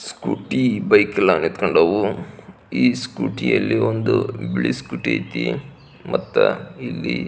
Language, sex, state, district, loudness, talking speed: Kannada, male, Karnataka, Belgaum, -20 LUFS, 100 wpm